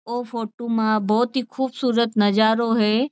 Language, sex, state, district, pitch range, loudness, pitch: Marwari, female, Rajasthan, Churu, 220-245 Hz, -21 LUFS, 230 Hz